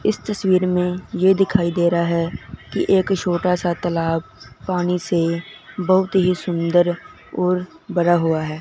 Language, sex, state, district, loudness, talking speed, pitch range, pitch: Hindi, male, Punjab, Fazilka, -20 LUFS, 155 wpm, 170-185 Hz, 180 Hz